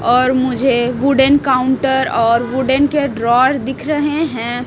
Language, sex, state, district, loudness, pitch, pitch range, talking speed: Hindi, female, Chhattisgarh, Raipur, -14 LUFS, 260 Hz, 245-275 Hz, 140 wpm